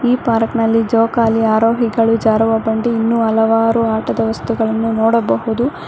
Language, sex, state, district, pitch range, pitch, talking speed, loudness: Kannada, female, Karnataka, Bangalore, 225-230 Hz, 225 Hz, 110 wpm, -15 LUFS